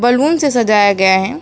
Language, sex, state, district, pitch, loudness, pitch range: Hindi, female, West Bengal, Alipurduar, 240 Hz, -12 LUFS, 200-275 Hz